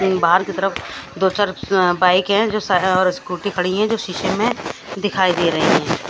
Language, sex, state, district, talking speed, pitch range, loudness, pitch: Hindi, female, Punjab, Fazilka, 205 wpm, 180-200 Hz, -18 LUFS, 185 Hz